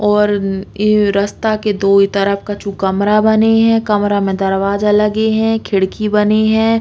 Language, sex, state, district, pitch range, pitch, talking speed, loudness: Bundeli, female, Uttar Pradesh, Hamirpur, 200-215 Hz, 210 Hz, 160 wpm, -14 LUFS